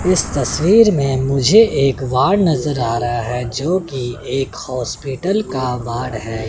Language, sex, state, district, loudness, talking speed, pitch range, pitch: Hindi, male, Chandigarh, Chandigarh, -17 LUFS, 150 wpm, 125-170 Hz, 135 Hz